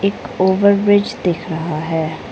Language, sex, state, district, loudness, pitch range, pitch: Hindi, female, Arunachal Pradesh, Lower Dibang Valley, -17 LUFS, 165-200 Hz, 190 Hz